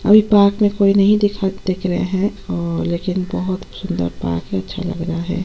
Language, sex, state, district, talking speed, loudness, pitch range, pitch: Hindi, female, Chhattisgarh, Sukma, 220 wpm, -18 LUFS, 170-200 Hz, 185 Hz